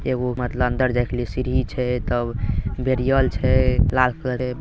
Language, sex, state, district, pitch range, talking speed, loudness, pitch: Maithili, male, Bihar, Madhepura, 120-130 Hz, 180 wpm, -22 LUFS, 125 Hz